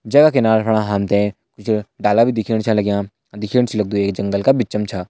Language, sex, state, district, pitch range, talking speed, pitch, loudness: Garhwali, male, Uttarakhand, Tehri Garhwal, 100-115 Hz, 225 wpm, 105 Hz, -17 LUFS